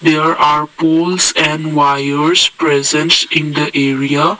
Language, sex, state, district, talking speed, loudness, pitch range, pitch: English, male, Assam, Kamrup Metropolitan, 125 wpm, -12 LUFS, 145-160 Hz, 150 Hz